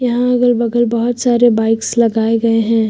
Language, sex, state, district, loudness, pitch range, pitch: Hindi, female, Uttar Pradesh, Lucknow, -14 LUFS, 225-240 Hz, 235 Hz